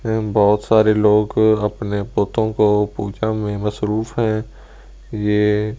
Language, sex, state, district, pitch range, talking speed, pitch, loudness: Hindi, male, Delhi, New Delhi, 105-110 Hz, 115 wpm, 105 Hz, -18 LUFS